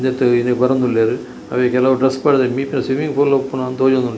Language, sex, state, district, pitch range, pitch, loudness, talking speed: Tulu, male, Karnataka, Dakshina Kannada, 125-135 Hz, 130 Hz, -16 LUFS, 145 wpm